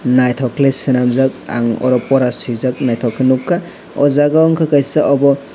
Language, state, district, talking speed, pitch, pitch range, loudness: Kokborok, Tripura, West Tripura, 175 wpm, 130 Hz, 125-145 Hz, -14 LUFS